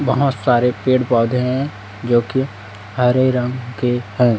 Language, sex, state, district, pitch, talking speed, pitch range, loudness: Hindi, male, Chhattisgarh, Raipur, 125 Hz, 150 wpm, 120-130 Hz, -18 LUFS